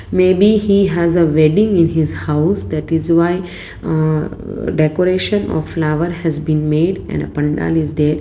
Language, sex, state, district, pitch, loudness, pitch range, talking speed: English, female, Gujarat, Valsad, 165 Hz, -15 LUFS, 155-185 Hz, 175 wpm